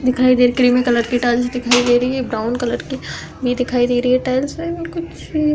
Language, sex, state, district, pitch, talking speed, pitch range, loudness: Hindi, female, Uttar Pradesh, Hamirpur, 250 Hz, 260 wpm, 245-255 Hz, -17 LUFS